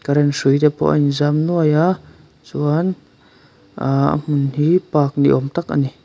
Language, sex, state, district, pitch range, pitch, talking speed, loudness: Mizo, male, Mizoram, Aizawl, 140-160 Hz, 145 Hz, 190 wpm, -17 LUFS